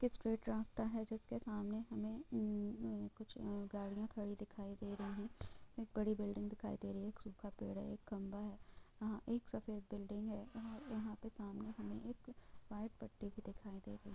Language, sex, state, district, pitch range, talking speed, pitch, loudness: Hindi, female, Bihar, Gopalganj, 205-220 Hz, 200 wpm, 210 Hz, -47 LUFS